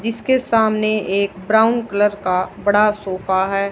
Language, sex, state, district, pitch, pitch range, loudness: Hindi, female, Haryana, Charkhi Dadri, 205 Hz, 195-220 Hz, -18 LUFS